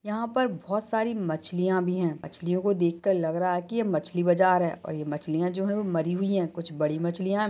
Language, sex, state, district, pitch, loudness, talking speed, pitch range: Hindi, female, Maharashtra, Nagpur, 180 Hz, -27 LUFS, 230 wpm, 170-200 Hz